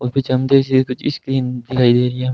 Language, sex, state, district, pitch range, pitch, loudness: Hindi, male, Rajasthan, Bikaner, 125-130 Hz, 130 Hz, -17 LUFS